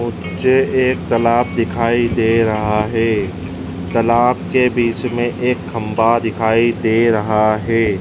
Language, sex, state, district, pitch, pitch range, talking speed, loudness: Hindi, male, Madhya Pradesh, Dhar, 115 Hz, 105-120 Hz, 125 wpm, -16 LUFS